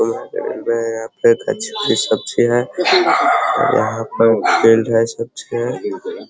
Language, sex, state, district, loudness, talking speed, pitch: Hindi, male, Bihar, Sitamarhi, -16 LUFS, 115 wpm, 115 Hz